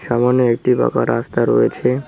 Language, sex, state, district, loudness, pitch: Bengali, male, West Bengal, Cooch Behar, -16 LUFS, 125 Hz